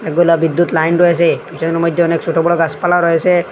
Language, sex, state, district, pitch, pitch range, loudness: Bengali, male, Assam, Hailakandi, 170 Hz, 165-175 Hz, -13 LUFS